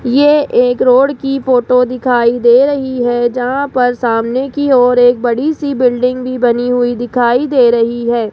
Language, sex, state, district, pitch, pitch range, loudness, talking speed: Hindi, female, Rajasthan, Jaipur, 250 Hz, 240-270 Hz, -12 LUFS, 180 wpm